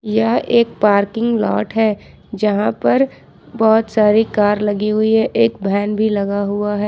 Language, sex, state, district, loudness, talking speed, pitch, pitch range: Hindi, female, Jharkhand, Ranchi, -16 LUFS, 165 wpm, 215 Hz, 205-225 Hz